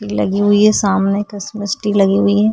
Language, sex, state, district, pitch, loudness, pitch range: Hindi, female, Maharashtra, Aurangabad, 205 Hz, -15 LUFS, 195-205 Hz